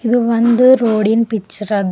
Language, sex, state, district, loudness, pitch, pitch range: Kannada, female, Karnataka, Bidar, -14 LUFS, 230 Hz, 215-235 Hz